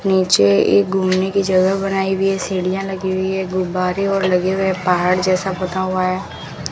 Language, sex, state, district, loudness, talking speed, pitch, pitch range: Hindi, female, Rajasthan, Bikaner, -17 LUFS, 190 wpm, 185 Hz, 185-190 Hz